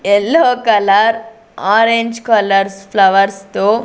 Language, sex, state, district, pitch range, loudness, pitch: Telugu, female, Andhra Pradesh, Sri Satya Sai, 195-230 Hz, -13 LUFS, 210 Hz